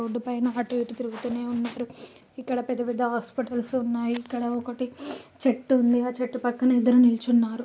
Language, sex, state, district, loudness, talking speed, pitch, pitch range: Telugu, female, Andhra Pradesh, Guntur, -26 LUFS, 135 wpm, 245 Hz, 240-250 Hz